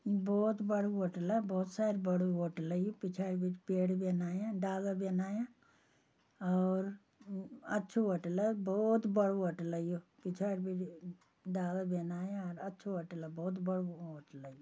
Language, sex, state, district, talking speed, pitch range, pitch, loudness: Garhwali, female, Uttarakhand, Uttarkashi, 150 wpm, 180-200 Hz, 185 Hz, -37 LUFS